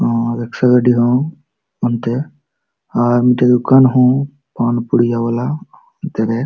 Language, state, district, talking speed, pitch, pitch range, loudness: Santali, Jharkhand, Sahebganj, 110 wpm, 125 Hz, 120-135 Hz, -15 LUFS